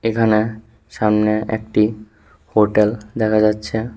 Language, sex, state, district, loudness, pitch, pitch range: Bengali, male, Tripura, West Tripura, -18 LUFS, 110 Hz, 105-110 Hz